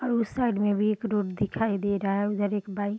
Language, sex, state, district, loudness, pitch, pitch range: Hindi, female, Bihar, Purnia, -27 LUFS, 205 Hz, 205-220 Hz